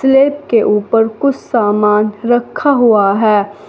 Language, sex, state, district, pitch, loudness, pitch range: Hindi, female, Uttar Pradesh, Saharanpur, 225 Hz, -12 LUFS, 210-250 Hz